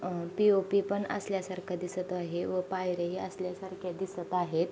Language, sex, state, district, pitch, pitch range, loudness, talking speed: Marathi, female, Maharashtra, Sindhudurg, 185 Hz, 180-190 Hz, -32 LUFS, 165 wpm